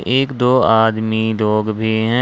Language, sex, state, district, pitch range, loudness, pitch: Hindi, male, Jharkhand, Ranchi, 110-125 Hz, -16 LUFS, 110 Hz